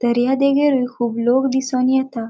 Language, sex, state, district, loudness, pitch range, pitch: Konkani, female, Goa, North and South Goa, -18 LUFS, 240-265 Hz, 255 Hz